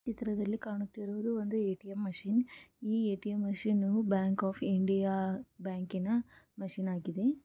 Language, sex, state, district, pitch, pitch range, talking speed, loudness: Kannada, female, Karnataka, Gulbarga, 205 Hz, 195-220 Hz, 130 wpm, -34 LUFS